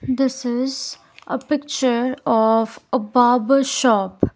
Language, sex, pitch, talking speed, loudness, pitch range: English, female, 255 Hz, 110 wpm, -19 LUFS, 235-270 Hz